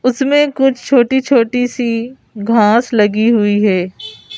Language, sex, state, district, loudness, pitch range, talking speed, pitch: Hindi, female, Madhya Pradesh, Bhopal, -13 LUFS, 210-255 Hz, 110 wpm, 235 Hz